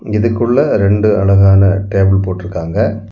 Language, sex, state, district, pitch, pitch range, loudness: Tamil, male, Tamil Nadu, Kanyakumari, 100 Hz, 95-105 Hz, -12 LUFS